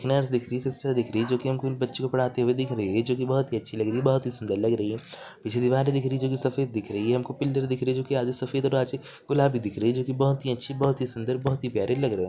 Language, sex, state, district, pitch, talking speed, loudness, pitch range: Hindi, male, Jharkhand, Jamtara, 130 Hz, 325 wpm, -26 LUFS, 120-135 Hz